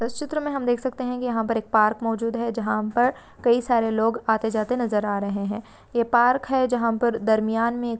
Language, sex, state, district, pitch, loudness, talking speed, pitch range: Hindi, female, Maharashtra, Solapur, 230 Hz, -23 LUFS, 230 wpm, 220-245 Hz